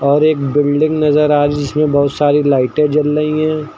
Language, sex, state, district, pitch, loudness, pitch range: Hindi, male, Uttar Pradesh, Lucknow, 150 Hz, -13 LUFS, 145-150 Hz